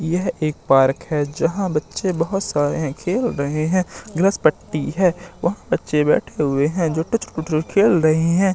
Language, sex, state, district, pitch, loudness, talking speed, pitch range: Hindi, male, Madhya Pradesh, Katni, 165 Hz, -20 LUFS, 155 wpm, 150-185 Hz